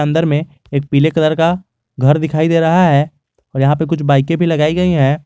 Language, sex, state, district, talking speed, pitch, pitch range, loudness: Hindi, male, Jharkhand, Garhwa, 230 wpm, 150 Hz, 140-165 Hz, -14 LUFS